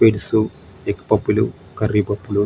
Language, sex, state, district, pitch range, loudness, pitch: Telugu, male, Andhra Pradesh, Srikakulam, 100-110 Hz, -20 LUFS, 105 Hz